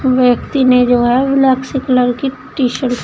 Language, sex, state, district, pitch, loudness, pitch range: Hindi, female, Uttar Pradesh, Shamli, 255 Hz, -13 LUFS, 250-265 Hz